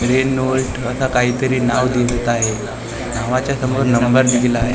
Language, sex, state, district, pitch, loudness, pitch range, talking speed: Marathi, male, Maharashtra, Gondia, 125 Hz, -17 LUFS, 120-130 Hz, 150 wpm